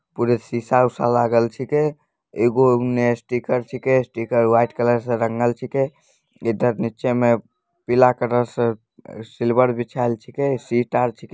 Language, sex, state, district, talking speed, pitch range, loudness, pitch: Maithili, male, Bihar, Samastipur, 120 wpm, 120-125 Hz, -20 LUFS, 120 Hz